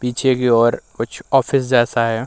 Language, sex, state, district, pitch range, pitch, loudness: Hindi, male, Bihar, Vaishali, 115-130 Hz, 125 Hz, -17 LUFS